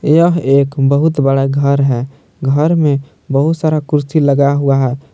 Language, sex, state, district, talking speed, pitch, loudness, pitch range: Hindi, male, Jharkhand, Palamu, 165 wpm, 140 Hz, -13 LUFS, 135-155 Hz